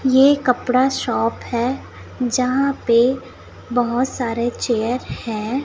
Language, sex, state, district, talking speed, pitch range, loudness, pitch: Hindi, female, Chhattisgarh, Raipur, 105 wpm, 235-260 Hz, -19 LUFS, 250 Hz